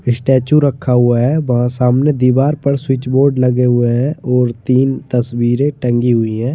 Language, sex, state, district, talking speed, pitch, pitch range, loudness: Hindi, male, Chandigarh, Chandigarh, 175 wpm, 125 Hz, 120-135 Hz, -14 LUFS